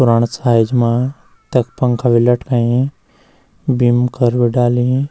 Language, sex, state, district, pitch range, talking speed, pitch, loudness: Garhwali, male, Uttarakhand, Uttarkashi, 120-130 Hz, 120 wpm, 125 Hz, -15 LUFS